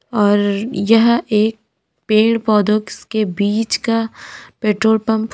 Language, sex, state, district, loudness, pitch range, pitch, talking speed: Hindi, female, Uttar Pradesh, Lalitpur, -16 LUFS, 210-225 Hz, 220 Hz, 135 wpm